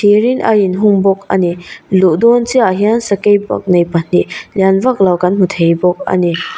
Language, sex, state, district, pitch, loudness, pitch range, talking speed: Mizo, female, Mizoram, Aizawl, 190 Hz, -12 LUFS, 180-205 Hz, 220 wpm